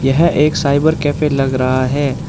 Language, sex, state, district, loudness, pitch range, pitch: Hindi, male, Arunachal Pradesh, Lower Dibang Valley, -15 LUFS, 135-155 Hz, 145 Hz